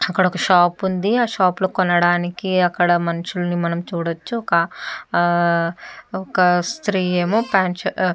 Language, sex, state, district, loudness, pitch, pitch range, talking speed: Telugu, female, Andhra Pradesh, Chittoor, -19 LUFS, 180 Hz, 175-190 Hz, 145 wpm